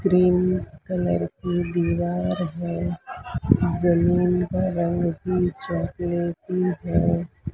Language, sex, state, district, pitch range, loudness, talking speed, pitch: Hindi, male, Maharashtra, Mumbai Suburban, 145-180 Hz, -23 LUFS, 90 wpm, 175 Hz